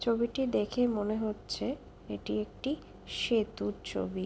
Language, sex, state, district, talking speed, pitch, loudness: Bengali, female, West Bengal, Purulia, 125 wpm, 215 Hz, -33 LUFS